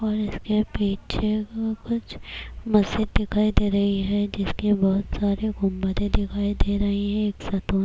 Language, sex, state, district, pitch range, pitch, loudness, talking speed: Urdu, female, Bihar, Kishanganj, 200-215 Hz, 205 Hz, -24 LUFS, 145 wpm